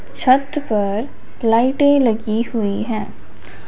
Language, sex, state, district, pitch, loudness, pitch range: Hindi, female, Punjab, Fazilka, 225 Hz, -18 LUFS, 205-255 Hz